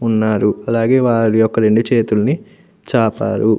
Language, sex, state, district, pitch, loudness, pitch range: Telugu, male, Andhra Pradesh, Anantapur, 115 Hz, -15 LUFS, 110-125 Hz